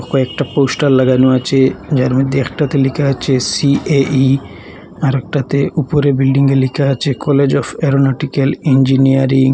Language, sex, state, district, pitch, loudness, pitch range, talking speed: Bengali, male, Assam, Hailakandi, 135 Hz, -13 LUFS, 130-140 Hz, 125 wpm